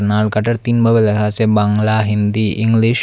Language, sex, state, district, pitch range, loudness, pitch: Bengali, male, Tripura, Unakoti, 105-115 Hz, -15 LUFS, 110 Hz